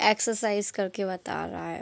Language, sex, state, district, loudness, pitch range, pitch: Hindi, female, Bihar, Araria, -29 LUFS, 160-215 Hz, 200 Hz